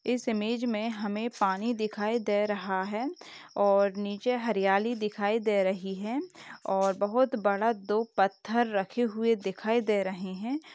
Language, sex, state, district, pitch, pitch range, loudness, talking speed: Hindi, female, Uttar Pradesh, Etah, 215 Hz, 200-235 Hz, -29 LUFS, 150 wpm